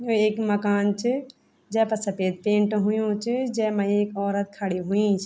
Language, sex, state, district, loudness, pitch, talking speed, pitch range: Garhwali, female, Uttarakhand, Tehri Garhwal, -24 LUFS, 210 Hz, 170 wpm, 200-220 Hz